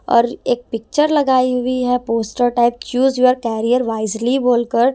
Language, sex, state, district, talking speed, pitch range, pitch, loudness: Hindi, female, Punjab, Kapurthala, 155 wpm, 235-255 Hz, 245 Hz, -17 LUFS